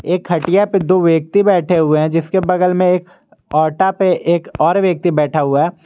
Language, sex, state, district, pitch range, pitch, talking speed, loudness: Hindi, male, Jharkhand, Garhwa, 160-185 Hz, 175 Hz, 205 wpm, -14 LUFS